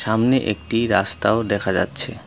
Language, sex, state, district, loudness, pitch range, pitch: Bengali, male, West Bengal, Cooch Behar, -19 LUFS, 95-115 Hz, 105 Hz